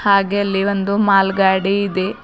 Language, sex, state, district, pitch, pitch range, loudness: Kannada, female, Karnataka, Bidar, 195 Hz, 195-200 Hz, -16 LUFS